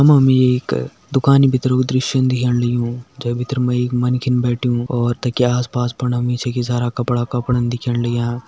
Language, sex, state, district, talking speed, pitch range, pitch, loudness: Hindi, male, Uttarakhand, Tehri Garhwal, 190 wpm, 120-130 Hz, 125 Hz, -18 LUFS